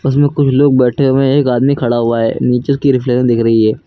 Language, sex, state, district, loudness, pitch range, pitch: Hindi, male, Uttar Pradesh, Lucknow, -12 LUFS, 120-140 Hz, 130 Hz